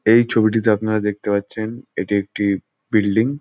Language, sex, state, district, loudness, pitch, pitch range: Bengali, male, West Bengal, Jhargram, -19 LUFS, 110 Hz, 105-110 Hz